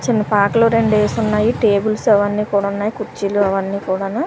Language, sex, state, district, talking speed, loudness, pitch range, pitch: Telugu, female, Andhra Pradesh, Manyam, 125 wpm, -16 LUFS, 200-220 Hz, 210 Hz